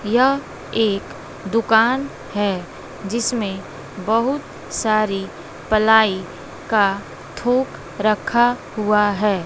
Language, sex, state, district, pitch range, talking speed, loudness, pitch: Hindi, female, Bihar, West Champaran, 200-235 Hz, 80 wpm, -19 LUFS, 215 Hz